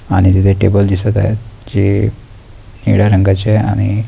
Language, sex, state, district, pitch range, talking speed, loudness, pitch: Marathi, male, Maharashtra, Pune, 100-105 Hz, 130 wpm, -13 LUFS, 105 Hz